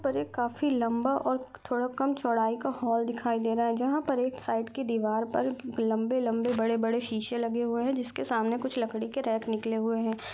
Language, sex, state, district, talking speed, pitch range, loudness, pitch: Hindi, female, Chhattisgarh, Rajnandgaon, 210 wpm, 225-255 Hz, -29 LUFS, 235 Hz